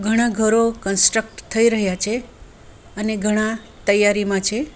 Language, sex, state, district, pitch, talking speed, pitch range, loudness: Gujarati, female, Gujarat, Valsad, 220 Hz, 125 wpm, 205-230 Hz, -19 LUFS